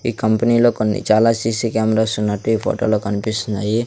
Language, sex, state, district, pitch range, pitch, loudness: Telugu, male, Andhra Pradesh, Sri Satya Sai, 105-115 Hz, 110 Hz, -18 LUFS